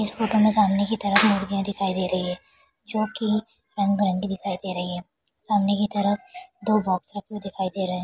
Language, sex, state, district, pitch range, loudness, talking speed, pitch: Hindi, female, Bihar, Kishanganj, 190-215 Hz, -24 LUFS, 215 wpm, 200 Hz